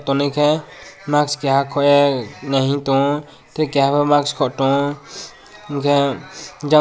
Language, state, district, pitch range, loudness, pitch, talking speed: Kokborok, Tripura, West Tripura, 140-150 Hz, -18 LUFS, 145 Hz, 125 wpm